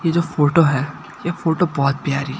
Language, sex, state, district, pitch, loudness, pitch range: Hindi, male, Gujarat, Gandhinagar, 160 Hz, -19 LUFS, 140-170 Hz